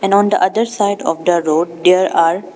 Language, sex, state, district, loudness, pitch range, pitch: English, female, Arunachal Pradesh, Papum Pare, -14 LUFS, 165-200 Hz, 185 Hz